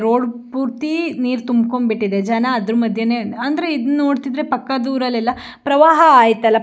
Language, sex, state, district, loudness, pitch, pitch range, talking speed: Kannada, female, Karnataka, Shimoga, -16 LUFS, 250 Hz, 230-275 Hz, 155 wpm